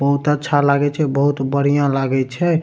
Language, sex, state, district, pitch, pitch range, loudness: Maithili, male, Bihar, Supaul, 140 Hz, 140-145 Hz, -17 LUFS